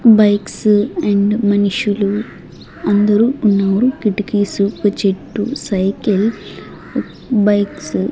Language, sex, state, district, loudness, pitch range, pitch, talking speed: Telugu, female, Andhra Pradesh, Sri Satya Sai, -16 LUFS, 200-215 Hz, 205 Hz, 80 wpm